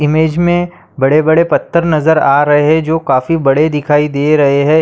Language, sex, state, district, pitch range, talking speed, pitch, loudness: Hindi, male, Maharashtra, Aurangabad, 145-160 Hz, 175 wpm, 155 Hz, -11 LUFS